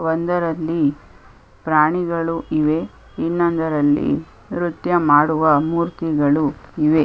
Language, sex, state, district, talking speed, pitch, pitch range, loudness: Kannada, female, Karnataka, Chamarajanagar, 75 wpm, 160 Hz, 150-170 Hz, -19 LUFS